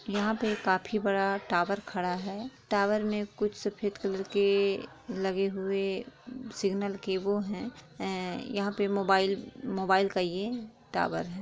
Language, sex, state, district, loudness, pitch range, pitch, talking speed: Hindi, female, Bihar, Lakhisarai, -31 LUFS, 195-210 Hz, 200 Hz, 140 wpm